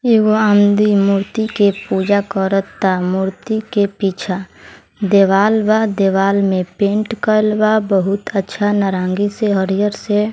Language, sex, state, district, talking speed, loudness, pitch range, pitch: Hindi, female, Bihar, East Champaran, 120 wpm, -15 LUFS, 195-215 Hz, 200 Hz